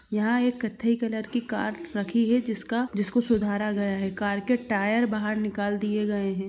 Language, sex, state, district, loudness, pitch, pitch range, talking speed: Hindi, female, Chhattisgarh, Bilaspur, -27 LUFS, 215 Hz, 205-235 Hz, 195 wpm